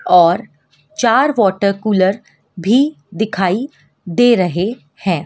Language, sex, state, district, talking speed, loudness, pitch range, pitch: Hindi, female, Madhya Pradesh, Dhar, 105 wpm, -15 LUFS, 175-235 Hz, 200 Hz